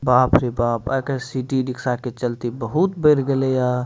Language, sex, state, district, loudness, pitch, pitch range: Maithili, male, Bihar, Madhepura, -21 LUFS, 125 Hz, 125-135 Hz